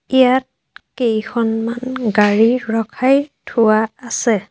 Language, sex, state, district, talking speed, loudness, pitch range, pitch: Assamese, female, Assam, Sonitpur, 80 wpm, -16 LUFS, 220-255 Hz, 230 Hz